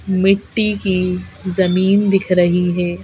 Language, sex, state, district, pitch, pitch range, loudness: Hindi, female, Madhya Pradesh, Bhopal, 185 Hz, 180-195 Hz, -16 LUFS